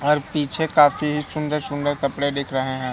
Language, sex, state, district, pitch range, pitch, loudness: Hindi, male, Madhya Pradesh, Katni, 140-150 Hz, 145 Hz, -21 LUFS